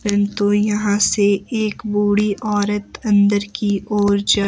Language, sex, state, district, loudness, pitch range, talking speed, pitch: Hindi, female, Himachal Pradesh, Shimla, -18 LUFS, 205-210 Hz, 145 wpm, 205 Hz